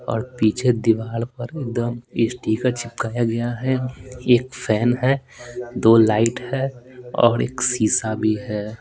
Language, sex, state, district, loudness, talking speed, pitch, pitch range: Hindi, male, Bihar, Patna, -21 LUFS, 135 wpm, 120 Hz, 115-125 Hz